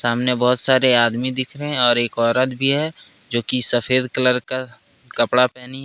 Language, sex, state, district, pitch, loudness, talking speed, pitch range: Hindi, male, Jharkhand, Ranchi, 125 Hz, -18 LUFS, 205 wpm, 120-130 Hz